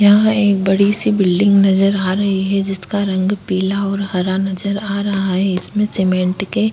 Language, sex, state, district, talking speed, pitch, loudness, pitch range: Hindi, female, Uttar Pradesh, Jyotiba Phule Nagar, 205 wpm, 195 Hz, -16 LUFS, 190-200 Hz